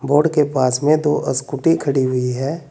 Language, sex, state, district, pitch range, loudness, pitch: Hindi, male, Uttar Pradesh, Saharanpur, 130-150 Hz, -18 LUFS, 140 Hz